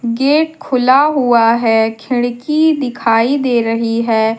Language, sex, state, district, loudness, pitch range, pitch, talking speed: Hindi, female, Jharkhand, Deoghar, -13 LUFS, 230-275 Hz, 240 Hz, 125 wpm